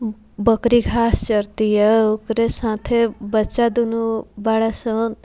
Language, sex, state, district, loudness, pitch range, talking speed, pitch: Bhojpuri, female, Bihar, Muzaffarpur, -18 LUFS, 215-230 Hz, 105 wpm, 225 Hz